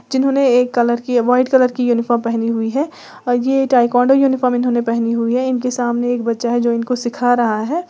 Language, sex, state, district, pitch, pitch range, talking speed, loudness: Hindi, female, Uttar Pradesh, Lalitpur, 245 Hz, 235-255 Hz, 220 wpm, -16 LUFS